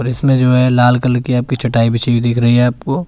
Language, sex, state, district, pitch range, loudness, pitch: Hindi, male, Uttar Pradesh, Shamli, 120-125 Hz, -13 LUFS, 125 Hz